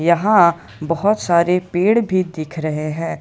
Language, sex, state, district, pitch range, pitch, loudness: Hindi, male, Jharkhand, Ranchi, 165-185 Hz, 170 Hz, -17 LUFS